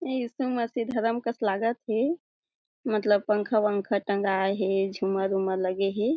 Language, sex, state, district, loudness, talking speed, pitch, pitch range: Chhattisgarhi, female, Chhattisgarh, Jashpur, -27 LUFS, 145 wpm, 210 Hz, 195-235 Hz